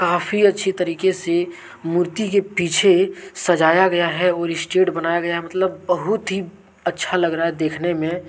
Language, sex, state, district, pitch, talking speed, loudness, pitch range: Hindi, male, Jharkhand, Deoghar, 180 Hz, 165 wpm, -19 LUFS, 170-190 Hz